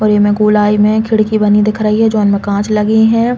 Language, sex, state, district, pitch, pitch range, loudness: Bundeli, female, Uttar Pradesh, Hamirpur, 210 Hz, 210-220 Hz, -11 LUFS